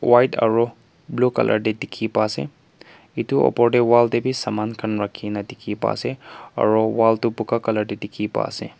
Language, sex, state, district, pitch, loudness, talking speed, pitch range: Nagamese, male, Nagaland, Kohima, 115 Hz, -21 LUFS, 205 wpm, 105-120 Hz